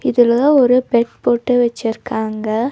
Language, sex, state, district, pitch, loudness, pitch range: Tamil, female, Tamil Nadu, Nilgiris, 240 Hz, -15 LUFS, 225-250 Hz